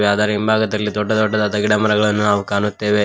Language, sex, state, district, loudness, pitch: Kannada, male, Karnataka, Koppal, -17 LUFS, 105 Hz